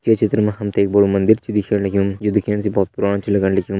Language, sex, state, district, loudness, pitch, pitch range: Hindi, male, Uttarakhand, Uttarkashi, -18 LUFS, 100 Hz, 100-105 Hz